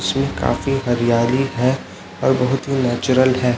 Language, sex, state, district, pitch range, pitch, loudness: Hindi, male, Chhattisgarh, Raipur, 120-135 Hz, 125 Hz, -18 LUFS